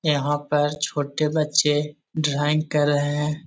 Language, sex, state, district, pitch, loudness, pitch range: Magahi, male, Bihar, Jahanabad, 150 Hz, -22 LUFS, 145-150 Hz